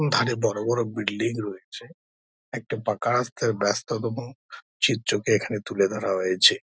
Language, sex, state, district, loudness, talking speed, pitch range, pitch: Bengali, male, West Bengal, Dakshin Dinajpur, -25 LUFS, 125 wpm, 95-120 Hz, 115 Hz